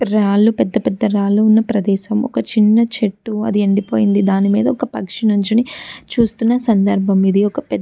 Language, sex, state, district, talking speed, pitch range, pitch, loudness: Telugu, female, Andhra Pradesh, Chittoor, 160 wpm, 200-230 Hz, 215 Hz, -15 LUFS